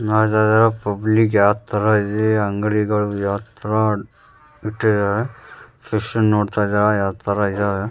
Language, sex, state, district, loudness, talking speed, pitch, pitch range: Kannada, male, Karnataka, Raichur, -19 LUFS, 130 wpm, 105 Hz, 100-110 Hz